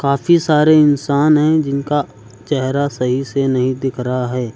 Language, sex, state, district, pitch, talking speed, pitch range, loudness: Hindi, male, Uttar Pradesh, Lucknow, 140 Hz, 160 wpm, 125-150 Hz, -15 LUFS